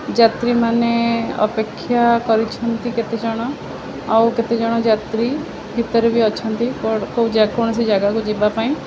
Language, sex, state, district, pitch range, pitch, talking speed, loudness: Odia, female, Odisha, Khordha, 220-235 Hz, 230 Hz, 110 wpm, -18 LUFS